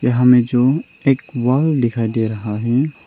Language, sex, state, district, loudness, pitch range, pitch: Hindi, male, Arunachal Pradesh, Longding, -17 LUFS, 115-135 Hz, 125 Hz